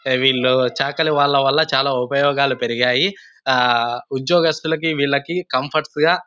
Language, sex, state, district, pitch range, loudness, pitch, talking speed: Telugu, male, Andhra Pradesh, Anantapur, 130-160 Hz, -18 LUFS, 140 Hz, 135 wpm